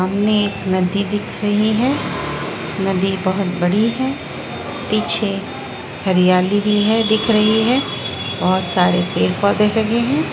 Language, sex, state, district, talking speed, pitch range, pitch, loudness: Hindi, female, Bihar, Araria, 130 wpm, 185-215 Hz, 200 Hz, -17 LUFS